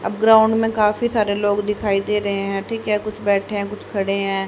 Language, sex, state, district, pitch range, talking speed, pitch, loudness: Hindi, male, Haryana, Rohtak, 200-215 Hz, 240 wpm, 210 Hz, -19 LUFS